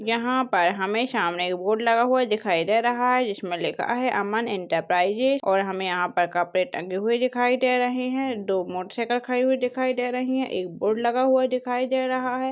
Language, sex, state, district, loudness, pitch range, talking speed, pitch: Hindi, female, Chhattisgarh, Bastar, -24 LUFS, 190-255 Hz, 210 wpm, 235 Hz